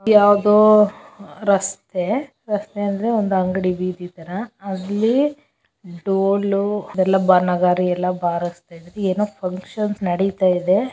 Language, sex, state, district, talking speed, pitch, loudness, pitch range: Kannada, female, Karnataka, Chamarajanagar, 100 wpm, 195 Hz, -19 LUFS, 180-210 Hz